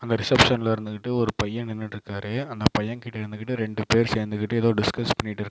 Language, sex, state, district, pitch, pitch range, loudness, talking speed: Tamil, male, Tamil Nadu, Namakkal, 110 Hz, 105-115 Hz, -25 LUFS, 195 wpm